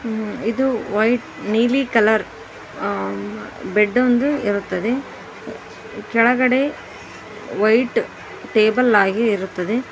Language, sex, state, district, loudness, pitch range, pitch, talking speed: Kannada, female, Karnataka, Koppal, -19 LUFS, 205-245 Hz, 220 Hz, 75 wpm